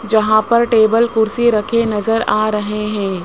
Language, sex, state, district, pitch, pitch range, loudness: Hindi, male, Rajasthan, Jaipur, 220 Hz, 210-230 Hz, -15 LUFS